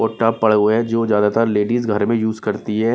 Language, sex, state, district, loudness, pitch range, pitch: Hindi, male, Bihar, Patna, -17 LUFS, 105-115 Hz, 110 Hz